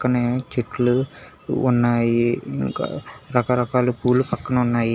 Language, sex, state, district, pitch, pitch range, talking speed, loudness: Telugu, male, Telangana, Hyderabad, 125 Hz, 120-125 Hz, 95 wpm, -21 LUFS